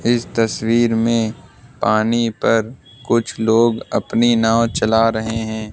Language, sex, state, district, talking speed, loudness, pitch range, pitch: Hindi, male, Uttar Pradesh, Lucknow, 125 wpm, -17 LUFS, 110-115 Hz, 115 Hz